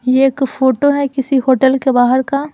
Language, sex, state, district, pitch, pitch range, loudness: Hindi, female, Bihar, Patna, 265 Hz, 260-275 Hz, -13 LUFS